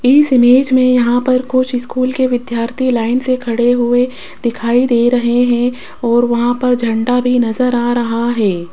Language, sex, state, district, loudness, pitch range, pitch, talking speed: Hindi, female, Rajasthan, Jaipur, -14 LUFS, 235-255 Hz, 245 Hz, 180 wpm